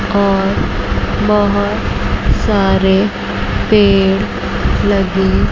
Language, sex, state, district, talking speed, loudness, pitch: Hindi, female, Chandigarh, Chandigarh, 55 wpm, -14 LUFS, 195 Hz